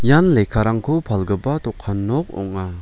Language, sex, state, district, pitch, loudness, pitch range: Garo, male, Meghalaya, West Garo Hills, 110 Hz, -19 LUFS, 100-140 Hz